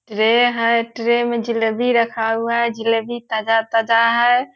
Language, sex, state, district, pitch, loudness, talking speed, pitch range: Hindi, female, Bihar, Purnia, 230 Hz, -17 LUFS, 160 wpm, 225-235 Hz